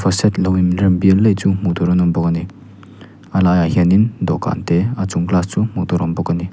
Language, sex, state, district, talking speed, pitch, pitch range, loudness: Mizo, male, Mizoram, Aizawl, 250 wpm, 95 Hz, 90-95 Hz, -16 LUFS